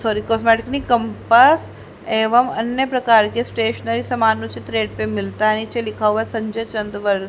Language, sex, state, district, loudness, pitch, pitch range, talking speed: Hindi, female, Haryana, Charkhi Dadri, -18 LUFS, 225 Hz, 210-235 Hz, 150 wpm